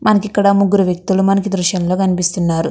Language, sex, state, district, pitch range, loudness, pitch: Telugu, female, Andhra Pradesh, Krishna, 180-200 Hz, -15 LUFS, 190 Hz